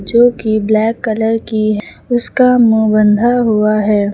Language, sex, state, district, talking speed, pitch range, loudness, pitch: Hindi, female, Uttar Pradesh, Lucknow, 160 wpm, 215-235 Hz, -13 LUFS, 220 Hz